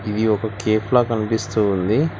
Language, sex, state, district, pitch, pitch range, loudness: Telugu, male, Telangana, Hyderabad, 110 Hz, 105-115 Hz, -20 LUFS